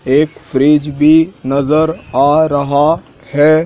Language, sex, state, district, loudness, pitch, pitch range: Hindi, male, Madhya Pradesh, Dhar, -12 LUFS, 150 Hz, 145-155 Hz